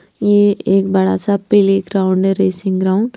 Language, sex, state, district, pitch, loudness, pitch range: Hindi, female, Punjab, Pathankot, 195 Hz, -14 LUFS, 190-205 Hz